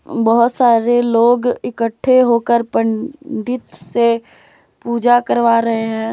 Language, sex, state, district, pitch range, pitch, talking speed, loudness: Hindi, female, Jharkhand, Deoghar, 230-245 Hz, 235 Hz, 110 wpm, -15 LUFS